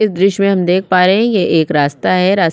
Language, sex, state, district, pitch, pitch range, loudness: Hindi, female, Chhattisgarh, Sukma, 185 Hz, 175-195 Hz, -13 LUFS